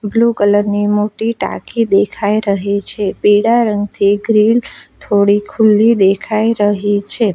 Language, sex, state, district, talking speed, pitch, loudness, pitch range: Gujarati, female, Gujarat, Valsad, 140 wpm, 205 Hz, -14 LUFS, 205-220 Hz